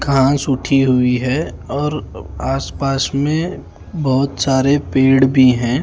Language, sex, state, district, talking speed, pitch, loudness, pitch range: Hindi, male, Haryana, Charkhi Dadri, 135 wpm, 135 Hz, -16 LUFS, 125-140 Hz